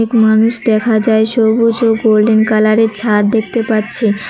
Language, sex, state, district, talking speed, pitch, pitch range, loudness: Bengali, female, West Bengal, Cooch Behar, 140 wpm, 220 Hz, 215-225 Hz, -12 LUFS